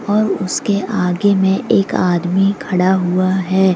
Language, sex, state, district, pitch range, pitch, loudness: Hindi, female, Jharkhand, Deoghar, 185-195 Hz, 190 Hz, -16 LUFS